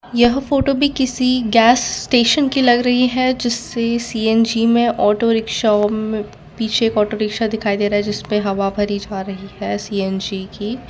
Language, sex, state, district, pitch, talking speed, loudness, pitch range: Hindi, female, Gujarat, Valsad, 225 Hz, 180 wpm, -17 LUFS, 210-245 Hz